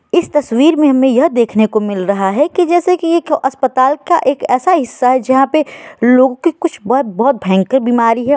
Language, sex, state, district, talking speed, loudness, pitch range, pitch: Hindi, female, Uttar Pradesh, Varanasi, 210 wpm, -13 LUFS, 245-315 Hz, 265 Hz